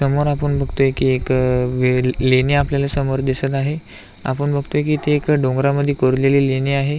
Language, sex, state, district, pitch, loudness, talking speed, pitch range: Marathi, male, Maharashtra, Aurangabad, 140 Hz, -18 LUFS, 165 wpm, 130-145 Hz